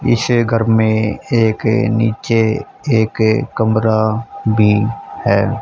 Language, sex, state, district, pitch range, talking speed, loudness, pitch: Hindi, male, Haryana, Charkhi Dadri, 110-115 Hz, 95 wpm, -15 LUFS, 110 Hz